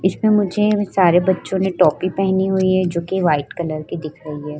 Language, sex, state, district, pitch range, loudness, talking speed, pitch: Hindi, female, Uttar Pradesh, Varanasi, 170-190 Hz, -18 LUFS, 210 wpm, 185 Hz